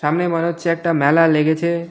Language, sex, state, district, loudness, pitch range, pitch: Bengali, male, West Bengal, Alipurduar, -17 LUFS, 160-170 Hz, 165 Hz